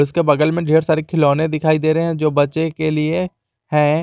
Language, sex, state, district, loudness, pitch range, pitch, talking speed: Hindi, male, Jharkhand, Garhwa, -17 LUFS, 150-160 Hz, 155 Hz, 225 wpm